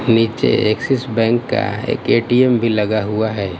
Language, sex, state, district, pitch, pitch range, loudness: Hindi, male, Gujarat, Gandhinagar, 115 Hz, 110-120 Hz, -16 LUFS